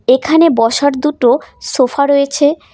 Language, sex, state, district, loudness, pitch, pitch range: Bengali, female, West Bengal, Cooch Behar, -12 LUFS, 280 Hz, 255-300 Hz